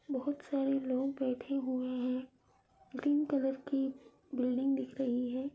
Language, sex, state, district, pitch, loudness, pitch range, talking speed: Hindi, female, Andhra Pradesh, Anantapur, 265 Hz, -35 LUFS, 255-275 Hz, 140 wpm